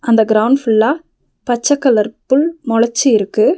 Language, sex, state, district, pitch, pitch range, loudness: Tamil, female, Tamil Nadu, Nilgiris, 235 Hz, 220-275 Hz, -14 LUFS